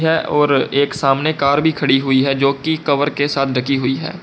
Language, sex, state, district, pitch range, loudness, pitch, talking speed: Hindi, male, Uttar Pradesh, Lalitpur, 135-150 Hz, -16 LUFS, 140 Hz, 225 wpm